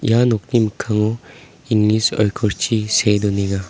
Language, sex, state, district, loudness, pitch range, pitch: Garo, male, Meghalaya, South Garo Hills, -18 LUFS, 105-110 Hz, 105 Hz